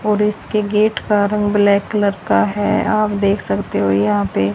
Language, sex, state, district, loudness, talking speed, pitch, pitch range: Hindi, female, Haryana, Rohtak, -16 LUFS, 195 wpm, 205 Hz, 190-210 Hz